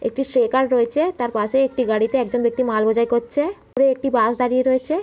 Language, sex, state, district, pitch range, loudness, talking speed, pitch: Bengali, female, West Bengal, Dakshin Dinajpur, 235-270 Hz, -19 LUFS, 200 wpm, 250 Hz